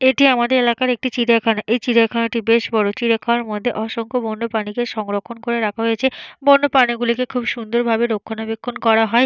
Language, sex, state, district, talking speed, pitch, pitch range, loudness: Bengali, female, Jharkhand, Jamtara, 170 wpm, 235 Hz, 225-245 Hz, -18 LUFS